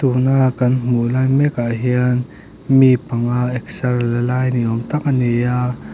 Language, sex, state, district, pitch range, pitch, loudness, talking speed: Mizo, male, Mizoram, Aizawl, 120-130 Hz, 125 Hz, -17 LUFS, 190 wpm